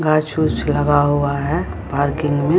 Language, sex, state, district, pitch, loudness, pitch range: Hindi, female, Bihar, Samastipur, 145 Hz, -18 LUFS, 140-155 Hz